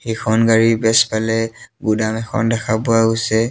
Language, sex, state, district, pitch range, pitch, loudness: Assamese, male, Assam, Sonitpur, 110-115 Hz, 115 Hz, -17 LUFS